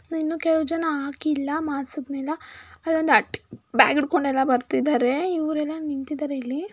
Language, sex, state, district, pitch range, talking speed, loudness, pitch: Kannada, female, Karnataka, Mysore, 280-320 Hz, 115 wpm, -23 LUFS, 300 Hz